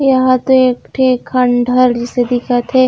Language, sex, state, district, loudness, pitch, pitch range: Chhattisgarhi, female, Chhattisgarh, Raigarh, -13 LUFS, 255 Hz, 245-255 Hz